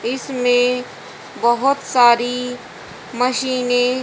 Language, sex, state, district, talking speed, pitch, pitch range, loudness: Hindi, female, Haryana, Charkhi Dadri, 75 wpm, 250 Hz, 245-255 Hz, -17 LUFS